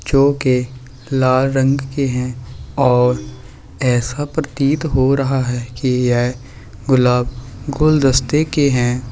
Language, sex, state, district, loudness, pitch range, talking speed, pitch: Hindi, male, Bihar, Begusarai, -17 LUFS, 125-140 Hz, 110 wpm, 130 Hz